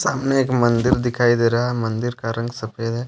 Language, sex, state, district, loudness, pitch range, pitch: Hindi, male, Jharkhand, Deoghar, -20 LUFS, 115-125 Hz, 120 Hz